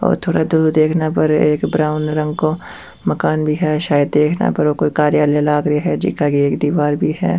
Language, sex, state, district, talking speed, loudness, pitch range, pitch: Rajasthani, male, Rajasthan, Churu, 220 wpm, -16 LUFS, 150-155 Hz, 150 Hz